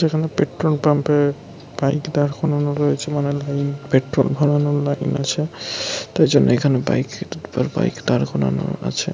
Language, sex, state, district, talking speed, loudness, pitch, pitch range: Bengali, male, West Bengal, Paschim Medinipur, 165 wpm, -20 LUFS, 145 Hz, 140-150 Hz